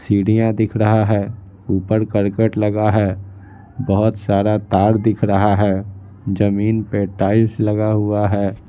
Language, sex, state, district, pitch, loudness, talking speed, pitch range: Hindi, male, Bihar, Patna, 105 Hz, -17 LUFS, 140 wpm, 100-110 Hz